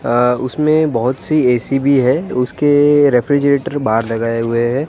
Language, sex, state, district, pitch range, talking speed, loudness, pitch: Hindi, male, Gujarat, Gandhinagar, 120-145 Hz, 160 wpm, -14 LUFS, 130 Hz